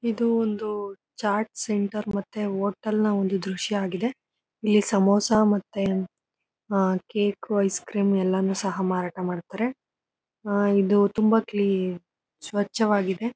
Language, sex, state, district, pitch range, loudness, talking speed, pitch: Kannada, female, Karnataka, Chamarajanagar, 195-215 Hz, -25 LUFS, 110 wpm, 205 Hz